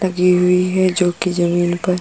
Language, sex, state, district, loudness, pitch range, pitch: Hindi, female, Uttar Pradesh, Jalaun, -16 LUFS, 175-180 Hz, 180 Hz